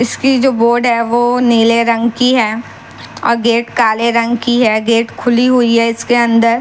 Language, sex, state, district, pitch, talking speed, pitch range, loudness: Hindi, female, Bihar, Katihar, 235 Hz, 190 wpm, 230-240 Hz, -12 LUFS